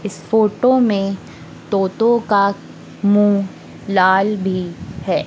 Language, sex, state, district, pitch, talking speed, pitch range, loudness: Hindi, female, Madhya Pradesh, Dhar, 200 Hz, 100 wpm, 195-215 Hz, -17 LUFS